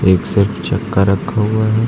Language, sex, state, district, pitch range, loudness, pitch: Hindi, male, Uttar Pradesh, Lucknow, 100-110 Hz, -16 LUFS, 105 Hz